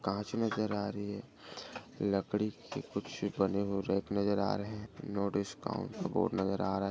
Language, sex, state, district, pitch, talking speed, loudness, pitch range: Hindi, male, Maharashtra, Dhule, 100 Hz, 175 wpm, -35 LUFS, 100-105 Hz